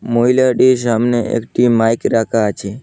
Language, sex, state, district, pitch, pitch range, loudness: Bengali, male, Assam, Hailakandi, 120 Hz, 115-120 Hz, -14 LUFS